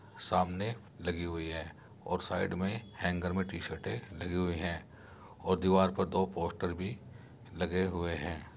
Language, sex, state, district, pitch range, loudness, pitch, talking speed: Hindi, male, Uttar Pradesh, Muzaffarnagar, 85-100 Hz, -35 LUFS, 90 Hz, 155 wpm